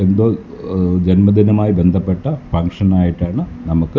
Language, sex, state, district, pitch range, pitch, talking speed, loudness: Malayalam, male, Kerala, Kasaragod, 90-105 Hz, 95 Hz, 120 wpm, -15 LUFS